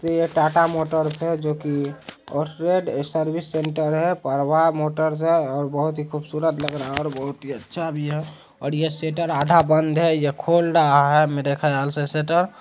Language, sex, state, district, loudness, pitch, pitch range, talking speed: Hindi, male, Bihar, Araria, -21 LUFS, 155 Hz, 145-165 Hz, 200 wpm